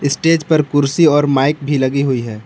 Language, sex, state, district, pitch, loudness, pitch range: Hindi, male, Jharkhand, Palamu, 145 Hz, -14 LUFS, 135-155 Hz